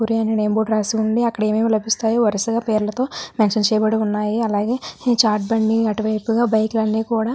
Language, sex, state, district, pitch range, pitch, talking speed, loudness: Telugu, female, Andhra Pradesh, Visakhapatnam, 215-225 Hz, 220 Hz, 195 wpm, -19 LUFS